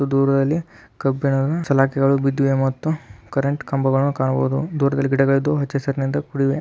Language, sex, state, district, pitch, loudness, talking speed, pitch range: Kannada, male, Karnataka, Belgaum, 135 Hz, -20 LUFS, 110 wpm, 135-140 Hz